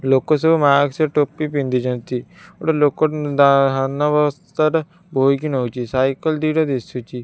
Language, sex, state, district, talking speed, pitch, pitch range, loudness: Odia, female, Odisha, Khordha, 135 wpm, 145 Hz, 135-155 Hz, -18 LUFS